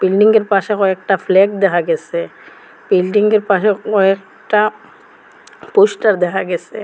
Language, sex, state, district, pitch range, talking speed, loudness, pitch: Bengali, female, Assam, Hailakandi, 190-215 Hz, 105 wpm, -15 LUFS, 205 Hz